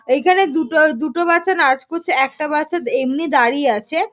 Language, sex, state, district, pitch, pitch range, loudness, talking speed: Bengali, female, West Bengal, North 24 Parganas, 315 Hz, 270-350 Hz, -16 LUFS, 160 wpm